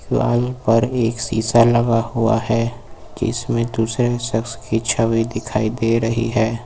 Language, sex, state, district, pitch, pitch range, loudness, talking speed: Hindi, male, Uttar Pradesh, Lucknow, 115 Hz, 115-120 Hz, -19 LUFS, 145 wpm